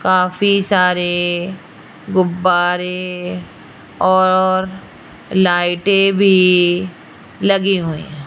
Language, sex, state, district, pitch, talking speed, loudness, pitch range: Hindi, female, Rajasthan, Jaipur, 185 Hz, 65 wpm, -15 LUFS, 175-190 Hz